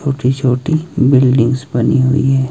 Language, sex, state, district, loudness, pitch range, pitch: Hindi, male, Himachal Pradesh, Shimla, -13 LUFS, 130-140 Hz, 130 Hz